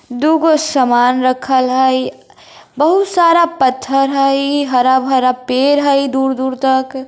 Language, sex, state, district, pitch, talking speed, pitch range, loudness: Hindi, female, Bihar, Darbhanga, 265 Hz, 135 wpm, 255-285 Hz, -13 LUFS